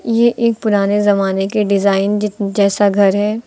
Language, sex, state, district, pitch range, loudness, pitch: Hindi, female, Uttar Pradesh, Lucknow, 200-215 Hz, -14 LUFS, 205 Hz